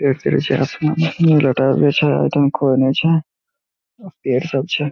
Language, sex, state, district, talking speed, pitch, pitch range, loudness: Maithili, male, Bihar, Samastipur, 75 wpm, 145 Hz, 135-160 Hz, -16 LUFS